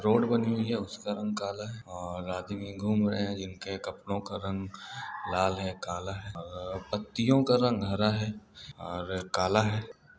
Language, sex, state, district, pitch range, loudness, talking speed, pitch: Hindi, male, Uttar Pradesh, Hamirpur, 95-105 Hz, -31 LUFS, 170 wpm, 100 Hz